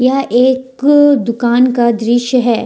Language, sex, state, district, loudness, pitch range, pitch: Hindi, female, Jharkhand, Deoghar, -12 LUFS, 235-260 Hz, 250 Hz